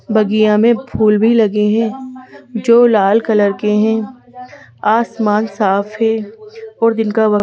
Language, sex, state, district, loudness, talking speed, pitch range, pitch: Hindi, female, Madhya Pradesh, Bhopal, -14 LUFS, 145 wpm, 210-235 Hz, 220 Hz